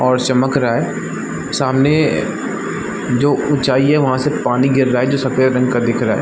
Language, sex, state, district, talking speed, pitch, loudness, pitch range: Hindi, male, Chhattisgarh, Rajnandgaon, 200 wpm, 130 Hz, -16 LUFS, 125-140 Hz